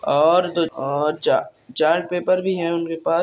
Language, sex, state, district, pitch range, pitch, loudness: Hindi, male, Rajasthan, Churu, 160-180 Hz, 170 Hz, -20 LUFS